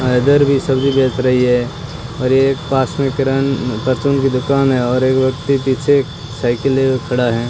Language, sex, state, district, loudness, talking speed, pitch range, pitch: Hindi, male, Rajasthan, Bikaner, -15 LUFS, 185 wpm, 125-140 Hz, 130 Hz